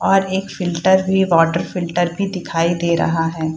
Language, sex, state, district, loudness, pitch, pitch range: Hindi, female, Bihar, Purnia, -18 LUFS, 175 Hz, 165-190 Hz